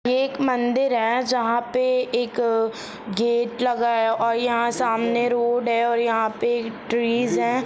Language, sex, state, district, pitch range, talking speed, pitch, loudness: Hindi, female, Jharkhand, Jamtara, 230-245 Hz, 150 wpm, 235 Hz, -22 LUFS